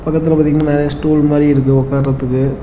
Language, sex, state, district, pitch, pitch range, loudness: Tamil, male, Tamil Nadu, Namakkal, 145 Hz, 135-150 Hz, -13 LUFS